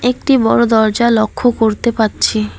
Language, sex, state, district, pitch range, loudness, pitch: Bengali, female, West Bengal, Alipurduar, 215-240 Hz, -13 LUFS, 225 Hz